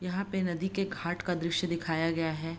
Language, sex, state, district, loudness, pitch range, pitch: Hindi, female, Bihar, Begusarai, -32 LUFS, 165-185 Hz, 175 Hz